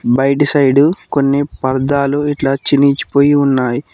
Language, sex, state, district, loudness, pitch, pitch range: Telugu, male, Telangana, Mahabubabad, -13 LUFS, 140 Hz, 135-145 Hz